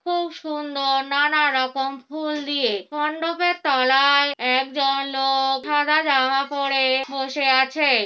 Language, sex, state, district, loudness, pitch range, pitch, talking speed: Bengali, female, West Bengal, Kolkata, -20 LUFS, 270-300 Hz, 275 Hz, 110 wpm